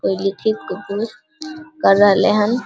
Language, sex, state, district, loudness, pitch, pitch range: Maithili, female, Bihar, Vaishali, -17 LUFS, 215 Hz, 200-300 Hz